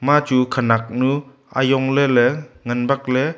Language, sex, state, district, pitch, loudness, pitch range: Wancho, male, Arunachal Pradesh, Longding, 130 Hz, -19 LUFS, 125-140 Hz